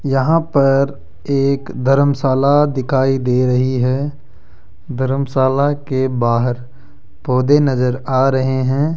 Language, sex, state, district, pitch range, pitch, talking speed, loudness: Hindi, male, Rajasthan, Jaipur, 125-140 Hz, 130 Hz, 105 wpm, -16 LUFS